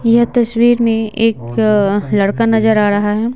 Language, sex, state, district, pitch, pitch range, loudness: Hindi, female, Bihar, Patna, 225 Hz, 210-230 Hz, -13 LUFS